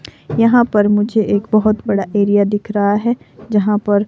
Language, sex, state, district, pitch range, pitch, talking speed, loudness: Hindi, female, Himachal Pradesh, Shimla, 205-215 Hz, 210 Hz, 175 wpm, -15 LUFS